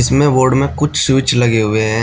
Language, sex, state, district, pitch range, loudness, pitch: Hindi, male, Uttar Pradesh, Shamli, 115-135 Hz, -13 LUFS, 130 Hz